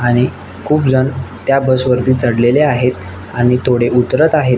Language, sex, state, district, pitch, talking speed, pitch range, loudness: Marathi, male, Maharashtra, Nagpur, 125 Hz, 155 wpm, 120-130 Hz, -13 LUFS